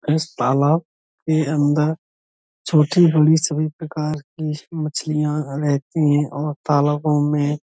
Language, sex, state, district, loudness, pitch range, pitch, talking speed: Hindi, male, Uttar Pradesh, Budaun, -19 LUFS, 145-155 Hz, 150 Hz, 120 wpm